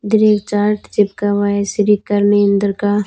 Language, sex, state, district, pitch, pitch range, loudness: Hindi, female, Rajasthan, Bikaner, 205 Hz, 205-210 Hz, -15 LUFS